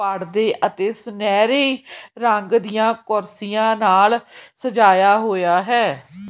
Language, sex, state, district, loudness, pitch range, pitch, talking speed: Punjabi, female, Punjab, Kapurthala, -18 LUFS, 200-230 Hz, 215 Hz, 95 wpm